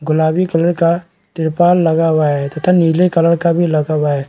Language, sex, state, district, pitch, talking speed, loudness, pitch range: Hindi, male, Chhattisgarh, Raigarh, 165 Hz, 210 wpm, -14 LUFS, 155-175 Hz